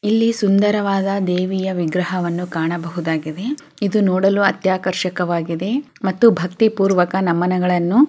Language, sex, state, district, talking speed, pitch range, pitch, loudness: Kannada, female, Karnataka, Chamarajanagar, 120 wpm, 175-205 Hz, 190 Hz, -18 LUFS